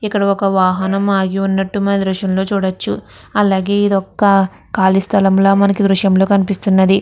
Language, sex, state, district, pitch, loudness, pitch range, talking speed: Telugu, female, Andhra Pradesh, Guntur, 195 Hz, -14 LUFS, 190-200 Hz, 155 wpm